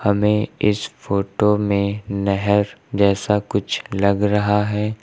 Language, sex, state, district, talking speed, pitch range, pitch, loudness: Hindi, male, Uttar Pradesh, Lucknow, 120 wpm, 100-105 Hz, 105 Hz, -19 LUFS